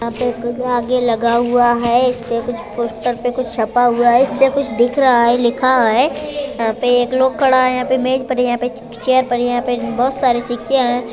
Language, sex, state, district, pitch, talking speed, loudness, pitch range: Hindi, female, Uttar Pradesh, Budaun, 245 Hz, 255 wpm, -16 LUFS, 240-255 Hz